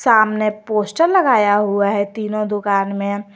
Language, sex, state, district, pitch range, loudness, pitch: Hindi, female, Jharkhand, Garhwa, 200-215 Hz, -17 LUFS, 210 Hz